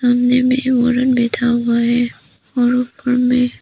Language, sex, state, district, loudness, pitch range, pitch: Hindi, female, Arunachal Pradesh, Papum Pare, -16 LUFS, 240-250 Hz, 245 Hz